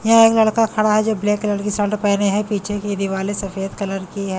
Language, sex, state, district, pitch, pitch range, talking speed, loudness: Hindi, female, Haryana, Charkhi Dadri, 205 Hz, 200-215 Hz, 260 wpm, -18 LUFS